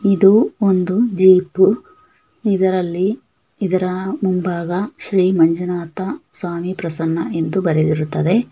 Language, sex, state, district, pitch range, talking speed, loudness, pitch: Kannada, female, Karnataka, Shimoga, 175-200 Hz, 85 wpm, -17 LUFS, 185 Hz